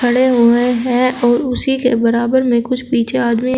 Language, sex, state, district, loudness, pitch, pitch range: Hindi, female, Uttar Pradesh, Shamli, -14 LUFS, 245 Hz, 240-255 Hz